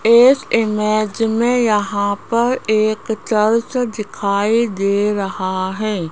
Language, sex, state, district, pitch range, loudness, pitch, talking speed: Hindi, female, Rajasthan, Jaipur, 205-230 Hz, -17 LUFS, 215 Hz, 110 wpm